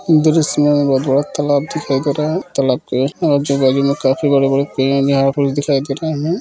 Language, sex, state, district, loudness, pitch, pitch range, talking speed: Hindi, male, Bihar, Jamui, -15 LUFS, 140 Hz, 135-150 Hz, 215 wpm